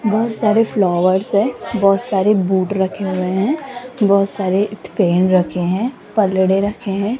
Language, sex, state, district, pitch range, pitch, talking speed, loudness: Hindi, female, Rajasthan, Jaipur, 190-215 Hz, 195 Hz, 150 wpm, -17 LUFS